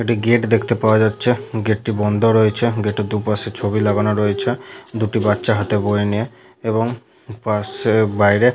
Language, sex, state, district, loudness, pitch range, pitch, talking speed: Bengali, male, West Bengal, Malda, -18 LUFS, 105-115 Hz, 110 Hz, 170 wpm